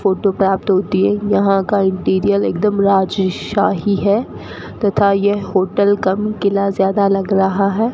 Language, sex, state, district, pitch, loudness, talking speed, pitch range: Hindi, female, Rajasthan, Bikaner, 200 Hz, -16 LUFS, 150 wpm, 195-205 Hz